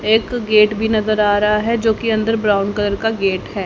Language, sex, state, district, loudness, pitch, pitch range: Hindi, female, Haryana, Jhajjar, -16 LUFS, 215 Hz, 205-225 Hz